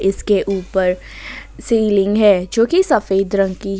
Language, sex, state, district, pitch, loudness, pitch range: Hindi, female, Jharkhand, Ranchi, 195 Hz, -16 LUFS, 195-215 Hz